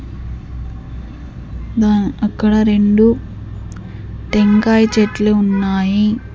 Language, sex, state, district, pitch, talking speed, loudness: Telugu, female, Andhra Pradesh, Sri Satya Sai, 200 Hz, 45 wpm, -14 LUFS